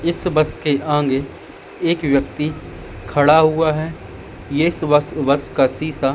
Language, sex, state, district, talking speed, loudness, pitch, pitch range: Hindi, male, Madhya Pradesh, Katni, 135 wpm, -18 LUFS, 150 Hz, 135-155 Hz